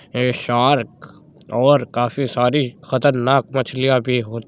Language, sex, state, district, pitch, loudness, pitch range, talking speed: Hindi, male, Uttar Pradesh, Jyotiba Phule Nagar, 130 Hz, -18 LUFS, 120-135 Hz, 135 wpm